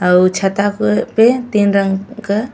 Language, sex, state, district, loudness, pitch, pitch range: Bhojpuri, female, Uttar Pradesh, Ghazipur, -14 LUFS, 200 Hz, 190-220 Hz